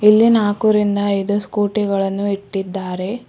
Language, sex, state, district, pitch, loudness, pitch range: Kannada, female, Karnataka, Bidar, 205 Hz, -18 LUFS, 195-210 Hz